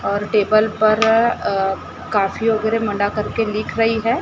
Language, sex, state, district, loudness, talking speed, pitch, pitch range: Hindi, female, Maharashtra, Gondia, -18 LUFS, 140 wpm, 215 Hz, 210-225 Hz